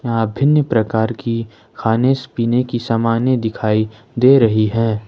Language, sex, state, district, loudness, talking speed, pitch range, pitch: Hindi, male, Jharkhand, Ranchi, -16 LUFS, 140 wpm, 110-125 Hz, 115 Hz